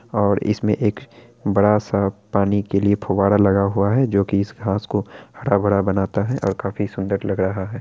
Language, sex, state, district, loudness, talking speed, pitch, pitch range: Hindi, male, Bihar, Araria, -20 LUFS, 185 wpm, 100 Hz, 100-105 Hz